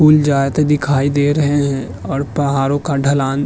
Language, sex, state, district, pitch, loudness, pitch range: Hindi, male, Uttar Pradesh, Hamirpur, 140 Hz, -16 LUFS, 135-145 Hz